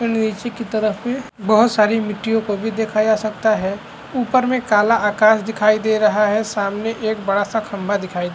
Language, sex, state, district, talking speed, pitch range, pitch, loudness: Hindi, male, Bihar, Araria, 200 wpm, 210-225 Hz, 215 Hz, -18 LUFS